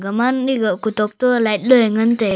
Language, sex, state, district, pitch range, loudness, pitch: Wancho, male, Arunachal Pradesh, Longding, 210-250 Hz, -16 LUFS, 225 Hz